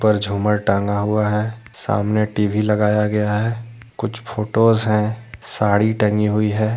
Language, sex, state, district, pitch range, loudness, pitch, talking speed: Hindi, male, Jharkhand, Deoghar, 105-110 Hz, -19 LUFS, 105 Hz, 150 wpm